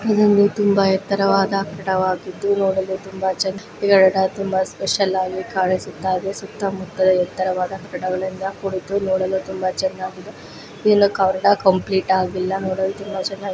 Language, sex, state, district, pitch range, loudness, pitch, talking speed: Kannada, female, Karnataka, Raichur, 185-195 Hz, -20 LUFS, 190 Hz, 135 wpm